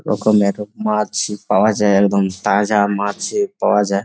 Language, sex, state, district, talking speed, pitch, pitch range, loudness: Bengali, male, West Bengal, Jalpaiguri, 150 wpm, 105 Hz, 100-105 Hz, -17 LUFS